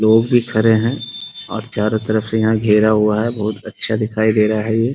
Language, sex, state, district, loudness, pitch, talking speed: Hindi, male, Bihar, Muzaffarpur, -16 LUFS, 110 Hz, 240 wpm